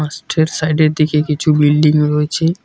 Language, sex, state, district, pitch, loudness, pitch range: Bengali, male, West Bengal, Cooch Behar, 155 Hz, -14 LUFS, 150-160 Hz